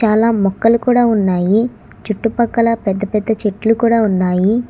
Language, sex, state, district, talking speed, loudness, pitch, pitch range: Telugu, female, Telangana, Hyderabad, 130 wpm, -15 LUFS, 220 Hz, 205-230 Hz